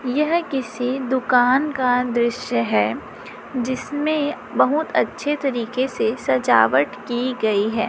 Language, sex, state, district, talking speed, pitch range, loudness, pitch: Hindi, female, Chhattisgarh, Raipur, 115 wpm, 235-280 Hz, -20 LUFS, 255 Hz